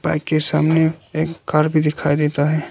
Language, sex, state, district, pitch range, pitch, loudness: Hindi, male, Arunachal Pradesh, Lower Dibang Valley, 150-160 Hz, 155 Hz, -18 LUFS